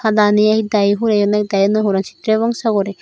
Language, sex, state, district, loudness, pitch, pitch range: Chakma, female, Tripura, Dhalai, -15 LUFS, 210 Hz, 200-220 Hz